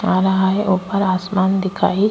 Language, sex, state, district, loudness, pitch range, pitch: Hindi, female, Goa, North and South Goa, -18 LUFS, 185-195 Hz, 190 Hz